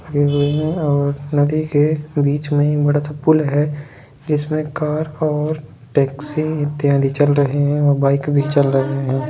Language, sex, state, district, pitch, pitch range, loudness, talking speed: Hindi, male, Jharkhand, Jamtara, 145 Hz, 140-150 Hz, -17 LUFS, 175 wpm